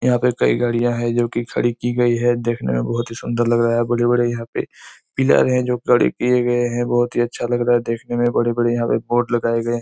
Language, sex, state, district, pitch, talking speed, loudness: Hindi, male, Chhattisgarh, Korba, 120 Hz, 255 wpm, -19 LUFS